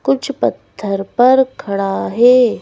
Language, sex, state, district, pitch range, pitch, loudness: Hindi, female, Madhya Pradesh, Bhopal, 200-260 Hz, 245 Hz, -14 LUFS